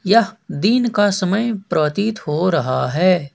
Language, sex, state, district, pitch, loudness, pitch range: Hindi, male, Jharkhand, Ranchi, 195 Hz, -18 LUFS, 155-220 Hz